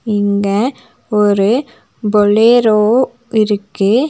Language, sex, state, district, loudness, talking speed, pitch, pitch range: Tamil, female, Tamil Nadu, Nilgiris, -13 LUFS, 60 wpm, 215 Hz, 205-245 Hz